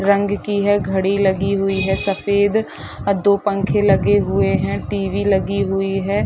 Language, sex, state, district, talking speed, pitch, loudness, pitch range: Hindi, female, Chhattisgarh, Sarguja, 180 wpm, 200 Hz, -18 LUFS, 195-200 Hz